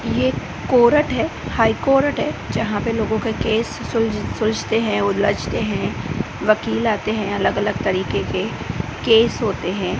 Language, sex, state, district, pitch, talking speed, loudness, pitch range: Hindi, female, Gujarat, Gandhinagar, 220 Hz, 155 wpm, -20 LUFS, 205-230 Hz